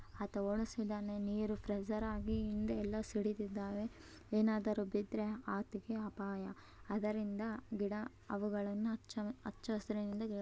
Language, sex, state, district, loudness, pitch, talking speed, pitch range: Kannada, male, Karnataka, Bellary, -41 LUFS, 210 Hz, 90 wpm, 205-220 Hz